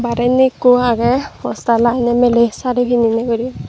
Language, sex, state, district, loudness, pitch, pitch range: Chakma, female, Tripura, Dhalai, -15 LUFS, 240 Hz, 235-250 Hz